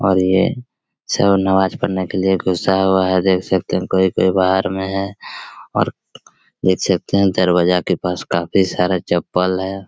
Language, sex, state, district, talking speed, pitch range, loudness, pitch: Hindi, male, Chhattisgarh, Raigarh, 170 wpm, 90-95 Hz, -17 LUFS, 95 Hz